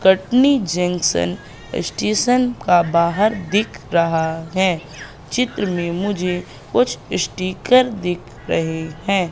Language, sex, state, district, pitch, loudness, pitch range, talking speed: Hindi, female, Madhya Pradesh, Katni, 180 Hz, -19 LUFS, 165-210 Hz, 105 wpm